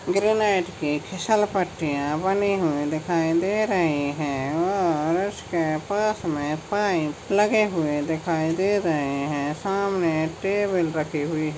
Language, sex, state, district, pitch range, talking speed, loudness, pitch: Hindi, male, Maharashtra, Solapur, 150-195 Hz, 125 wpm, -24 LUFS, 170 Hz